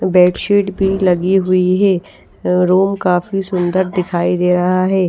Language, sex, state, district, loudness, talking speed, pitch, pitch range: Hindi, female, Bihar, Patna, -15 LUFS, 140 wpm, 185 Hz, 180-190 Hz